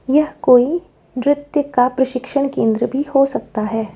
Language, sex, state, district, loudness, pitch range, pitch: Hindi, female, Rajasthan, Jaipur, -17 LUFS, 245-285 Hz, 265 Hz